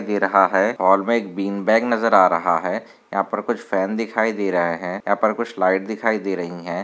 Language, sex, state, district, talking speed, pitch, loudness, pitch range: Hindi, male, Maharashtra, Nagpur, 220 wpm, 100 Hz, -20 LUFS, 95-110 Hz